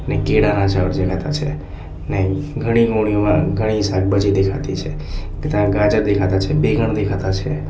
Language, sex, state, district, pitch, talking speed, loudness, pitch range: Gujarati, male, Gujarat, Valsad, 100 Hz, 140 wpm, -18 LUFS, 95-105 Hz